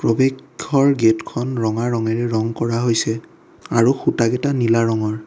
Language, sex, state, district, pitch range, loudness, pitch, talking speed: Assamese, male, Assam, Kamrup Metropolitan, 110-125 Hz, -19 LUFS, 115 Hz, 135 wpm